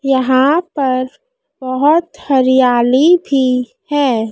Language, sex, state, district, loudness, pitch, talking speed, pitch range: Hindi, female, Madhya Pradesh, Dhar, -13 LUFS, 265 Hz, 85 wpm, 255-295 Hz